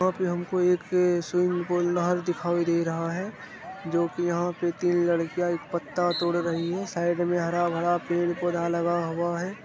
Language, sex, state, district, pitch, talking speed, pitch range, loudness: Maithili, male, Bihar, Begusarai, 175 Hz, 185 wpm, 170-175 Hz, -26 LUFS